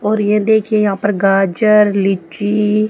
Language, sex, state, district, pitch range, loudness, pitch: Hindi, female, Haryana, Charkhi Dadri, 195-215 Hz, -14 LUFS, 210 Hz